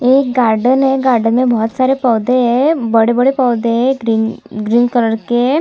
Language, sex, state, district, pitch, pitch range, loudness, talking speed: Hindi, female, Chhattisgarh, Kabirdham, 245 Hz, 230-260 Hz, -13 LUFS, 170 wpm